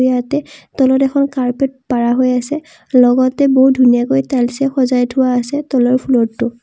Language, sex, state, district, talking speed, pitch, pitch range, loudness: Assamese, female, Assam, Kamrup Metropolitan, 145 wpm, 255 Hz, 245-275 Hz, -14 LUFS